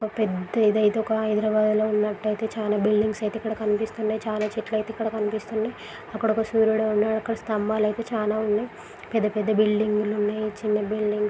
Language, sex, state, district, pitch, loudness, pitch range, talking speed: Telugu, female, Andhra Pradesh, Srikakulam, 215 Hz, -24 LUFS, 210-220 Hz, 155 wpm